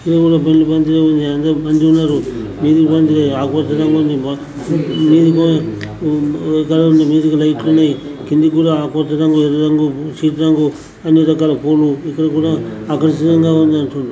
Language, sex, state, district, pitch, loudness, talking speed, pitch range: Telugu, male, Telangana, Karimnagar, 155 Hz, -13 LUFS, 130 wpm, 150-160 Hz